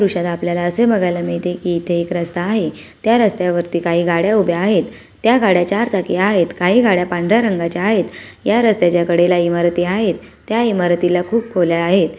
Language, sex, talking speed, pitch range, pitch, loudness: Marathi, female, 155 wpm, 175-210 Hz, 180 Hz, -16 LUFS